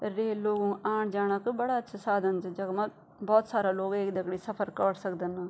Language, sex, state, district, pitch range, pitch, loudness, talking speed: Garhwali, female, Uttarakhand, Tehri Garhwal, 190-215 Hz, 200 Hz, -30 LUFS, 195 wpm